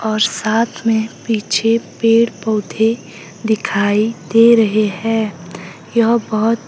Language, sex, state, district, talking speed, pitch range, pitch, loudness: Hindi, female, Himachal Pradesh, Shimla, 110 wpm, 205-230 Hz, 220 Hz, -16 LUFS